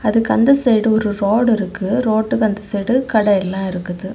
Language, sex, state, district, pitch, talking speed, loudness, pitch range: Tamil, female, Tamil Nadu, Kanyakumari, 215 Hz, 175 wpm, -16 LUFS, 200-230 Hz